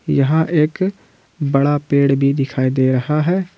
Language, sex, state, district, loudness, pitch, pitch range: Hindi, male, Jharkhand, Ranchi, -17 LUFS, 140 Hz, 135-155 Hz